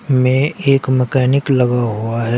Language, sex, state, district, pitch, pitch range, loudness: Hindi, male, Uttar Pradesh, Shamli, 130 Hz, 120-135 Hz, -15 LUFS